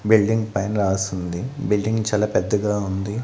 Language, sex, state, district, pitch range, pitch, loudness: Telugu, male, Andhra Pradesh, Annamaya, 100-110 Hz, 105 Hz, -22 LUFS